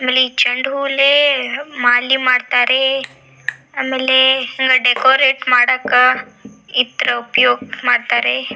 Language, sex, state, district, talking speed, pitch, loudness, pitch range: Kannada, female, Karnataka, Belgaum, 85 wpm, 255 Hz, -14 LUFS, 245-265 Hz